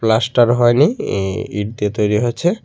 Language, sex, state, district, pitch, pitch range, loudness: Bengali, male, Tripura, Unakoti, 110 Hz, 105-120 Hz, -16 LUFS